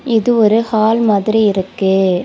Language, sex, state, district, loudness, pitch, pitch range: Tamil, female, Tamil Nadu, Kanyakumari, -13 LUFS, 215 Hz, 195-225 Hz